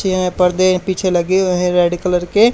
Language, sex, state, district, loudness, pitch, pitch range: Hindi, male, Haryana, Charkhi Dadri, -15 LUFS, 185 Hz, 180-190 Hz